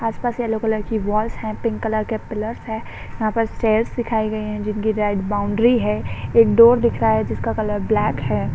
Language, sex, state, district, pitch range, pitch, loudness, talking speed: Hindi, female, Chhattisgarh, Korba, 205-225 Hz, 215 Hz, -20 LUFS, 210 wpm